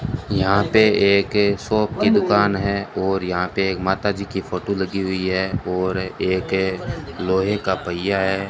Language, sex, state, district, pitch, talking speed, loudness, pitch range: Hindi, male, Rajasthan, Bikaner, 95 Hz, 160 wpm, -20 LUFS, 95-100 Hz